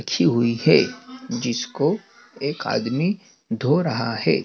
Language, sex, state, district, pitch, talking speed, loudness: Hindi, male, Madhya Pradesh, Dhar, 150 Hz, 120 wpm, -22 LUFS